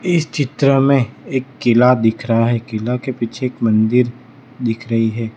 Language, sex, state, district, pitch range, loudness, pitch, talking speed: Hindi, male, Gujarat, Valsad, 115-130 Hz, -17 LUFS, 125 Hz, 180 wpm